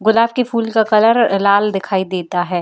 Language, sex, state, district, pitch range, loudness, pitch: Hindi, female, Bihar, Jamui, 190-230 Hz, -15 LUFS, 210 Hz